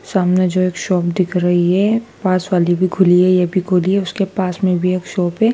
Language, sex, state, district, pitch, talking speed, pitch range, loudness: Hindi, female, Madhya Pradesh, Dhar, 185 Hz, 250 wpm, 180-190 Hz, -16 LUFS